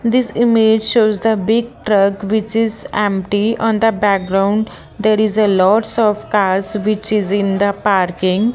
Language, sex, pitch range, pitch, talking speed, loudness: English, female, 200-225 Hz, 215 Hz, 160 wpm, -15 LUFS